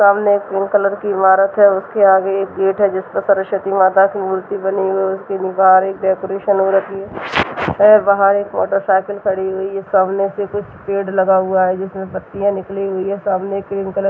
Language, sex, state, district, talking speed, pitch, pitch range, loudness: Hindi, female, Rajasthan, Churu, 215 wpm, 195 Hz, 190-200 Hz, -16 LUFS